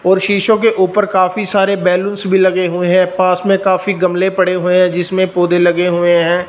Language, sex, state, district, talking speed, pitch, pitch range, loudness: Hindi, male, Punjab, Fazilka, 215 wpm, 185 Hz, 180-195 Hz, -13 LUFS